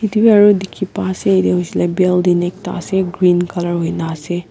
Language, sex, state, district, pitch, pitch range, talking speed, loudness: Nagamese, female, Nagaland, Kohima, 175 Hz, 165-185 Hz, 215 wpm, -15 LUFS